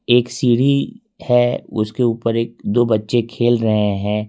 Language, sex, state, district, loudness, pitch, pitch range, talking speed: Hindi, male, Jharkhand, Ranchi, -17 LUFS, 120 Hz, 110-125 Hz, 155 wpm